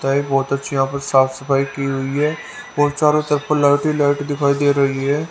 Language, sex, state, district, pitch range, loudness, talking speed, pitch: Hindi, male, Haryana, Rohtak, 135-145 Hz, -18 LUFS, 235 wpm, 140 Hz